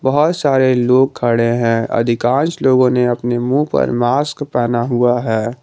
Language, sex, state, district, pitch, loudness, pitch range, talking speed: Hindi, male, Jharkhand, Garhwa, 125 Hz, -15 LUFS, 120-135 Hz, 160 wpm